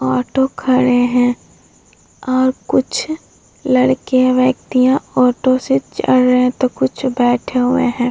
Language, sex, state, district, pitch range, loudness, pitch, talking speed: Hindi, female, Bihar, Vaishali, 250-260 Hz, -15 LUFS, 255 Hz, 125 wpm